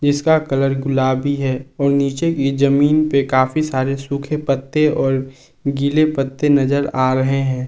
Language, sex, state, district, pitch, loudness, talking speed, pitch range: Hindi, male, Jharkhand, Palamu, 140 Hz, -17 LUFS, 155 wpm, 135-145 Hz